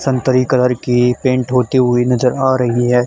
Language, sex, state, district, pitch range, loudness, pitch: Hindi, male, Haryana, Charkhi Dadri, 125-130 Hz, -14 LUFS, 125 Hz